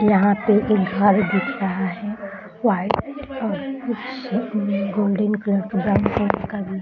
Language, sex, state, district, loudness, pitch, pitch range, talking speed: Hindi, female, Bihar, Darbhanga, -21 LUFS, 205 Hz, 195-220 Hz, 165 wpm